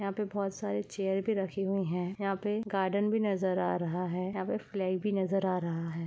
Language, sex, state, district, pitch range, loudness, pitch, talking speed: Hindi, female, Bihar, Saran, 180-200 Hz, -32 LUFS, 195 Hz, 245 wpm